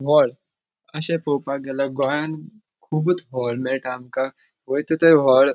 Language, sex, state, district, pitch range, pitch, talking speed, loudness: Konkani, male, Goa, North and South Goa, 135-155 Hz, 140 Hz, 130 wpm, -21 LUFS